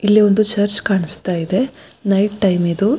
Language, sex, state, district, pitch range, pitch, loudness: Kannada, female, Karnataka, Shimoga, 190-210 Hz, 205 Hz, -15 LUFS